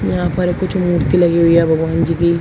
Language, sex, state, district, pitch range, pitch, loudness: Hindi, male, Uttar Pradesh, Shamli, 165-180 Hz, 170 Hz, -15 LUFS